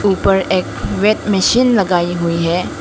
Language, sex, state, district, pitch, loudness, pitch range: Hindi, female, Arunachal Pradesh, Lower Dibang Valley, 190 Hz, -15 LUFS, 175-205 Hz